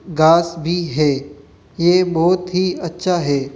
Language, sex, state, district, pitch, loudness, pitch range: Hindi, male, Rajasthan, Jaipur, 170 Hz, -17 LUFS, 150-180 Hz